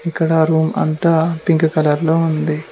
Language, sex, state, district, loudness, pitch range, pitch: Telugu, male, Telangana, Mahabubabad, -16 LUFS, 155-165 Hz, 160 Hz